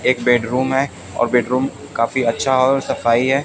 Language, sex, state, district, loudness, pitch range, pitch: Hindi, male, Haryana, Jhajjar, -18 LUFS, 120-130 Hz, 125 Hz